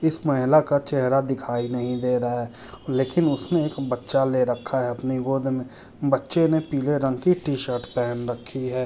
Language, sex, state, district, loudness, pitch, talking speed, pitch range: Maithili, male, Bihar, Muzaffarpur, -23 LUFS, 130 Hz, 190 wpm, 125-140 Hz